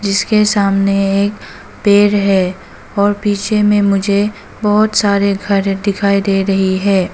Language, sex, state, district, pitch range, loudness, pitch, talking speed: Hindi, female, Arunachal Pradesh, Papum Pare, 195-205 Hz, -14 LUFS, 200 Hz, 135 wpm